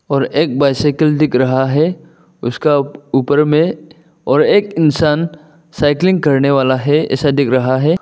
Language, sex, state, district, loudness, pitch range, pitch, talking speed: Hindi, male, Arunachal Pradesh, Lower Dibang Valley, -14 LUFS, 135-160 Hz, 150 Hz, 150 wpm